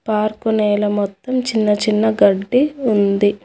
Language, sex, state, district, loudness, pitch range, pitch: Telugu, female, Telangana, Hyderabad, -17 LUFS, 205-220 Hz, 215 Hz